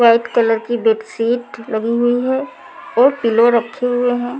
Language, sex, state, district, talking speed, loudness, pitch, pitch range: Hindi, female, Maharashtra, Mumbai Suburban, 175 wpm, -16 LUFS, 235 Hz, 230-245 Hz